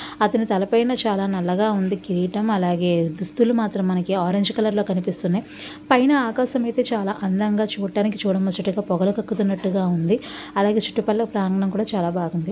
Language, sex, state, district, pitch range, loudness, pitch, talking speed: Telugu, female, Andhra Pradesh, Visakhapatnam, 190-220 Hz, -21 LUFS, 200 Hz, 160 wpm